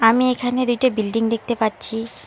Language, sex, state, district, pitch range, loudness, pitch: Bengali, female, West Bengal, Alipurduar, 225-245 Hz, -20 LUFS, 230 Hz